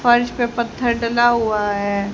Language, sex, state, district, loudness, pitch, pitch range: Hindi, female, Haryana, Rohtak, -18 LUFS, 235 Hz, 210-240 Hz